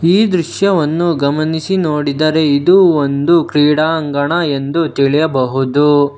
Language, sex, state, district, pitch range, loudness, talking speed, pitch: Kannada, male, Karnataka, Bangalore, 145-170 Hz, -13 LUFS, 85 wpm, 155 Hz